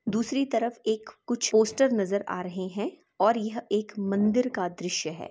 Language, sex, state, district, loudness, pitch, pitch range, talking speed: Hindi, female, Chhattisgarh, Bastar, -27 LUFS, 220 Hz, 200-235 Hz, 180 wpm